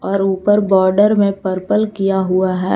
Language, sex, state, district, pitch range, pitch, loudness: Hindi, female, Jharkhand, Palamu, 190-205 Hz, 195 Hz, -15 LUFS